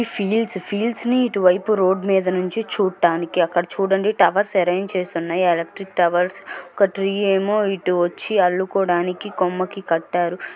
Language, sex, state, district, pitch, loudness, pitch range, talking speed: Telugu, female, Andhra Pradesh, Chittoor, 190 Hz, -20 LUFS, 180-200 Hz, 150 wpm